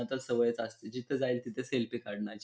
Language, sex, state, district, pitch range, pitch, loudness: Marathi, male, Maharashtra, Pune, 115-125 Hz, 120 Hz, -34 LUFS